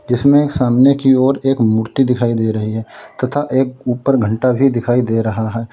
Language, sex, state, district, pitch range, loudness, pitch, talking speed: Hindi, male, Uttar Pradesh, Lalitpur, 115-135 Hz, -15 LUFS, 125 Hz, 210 wpm